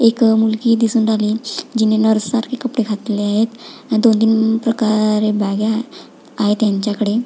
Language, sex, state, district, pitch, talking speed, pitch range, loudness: Marathi, female, Maharashtra, Pune, 220 Hz, 140 wpm, 215-230 Hz, -16 LUFS